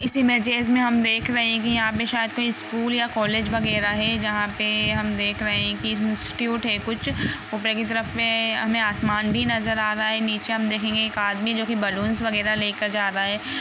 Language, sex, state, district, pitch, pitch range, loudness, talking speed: Hindi, female, Bihar, Purnia, 220 Hz, 210-230 Hz, -22 LUFS, 190 wpm